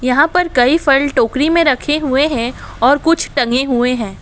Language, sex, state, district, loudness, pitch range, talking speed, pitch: Hindi, female, Assam, Kamrup Metropolitan, -14 LUFS, 250-305 Hz, 200 wpm, 275 Hz